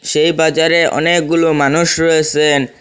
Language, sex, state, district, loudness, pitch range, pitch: Bengali, male, Assam, Hailakandi, -12 LUFS, 150-165 Hz, 160 Hz